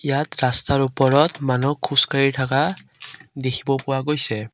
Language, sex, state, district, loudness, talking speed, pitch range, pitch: Assamese, male, Assam, Kamrup Metropolitan, -20 LUFS, 120 wpm, 130-140 Hz, 135 Hz